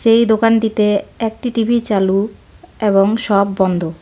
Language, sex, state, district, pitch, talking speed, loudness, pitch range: Bengali, female, West Bengal, Darjeeling, 215 Hz, 120 wpm, -15 LUFS, 200-225 Hz